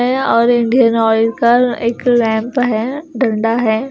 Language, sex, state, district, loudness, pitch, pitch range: Hindi, female, Himachal Pradesh, Shimla, -14 LUFS, 235 Hz, 225-250 Hz